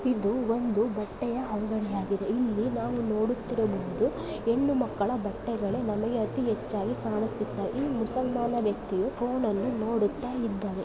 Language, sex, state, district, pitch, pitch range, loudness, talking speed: Kannada, female, Karnataka, Bellary, 225 Hz, 210-245 Hz, -29 LUFS, 115 wpm